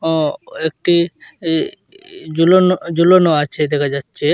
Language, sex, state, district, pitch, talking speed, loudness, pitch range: Bengali, male, Assam, Hailakandi, 165 Hz, 110 wpm, -15 LUFS, 150-185 Hz